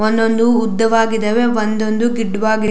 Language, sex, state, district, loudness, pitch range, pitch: Kannada, female, Karnataka, Shimoga, -15 LUFS, 215-225 Hz, 225 Hz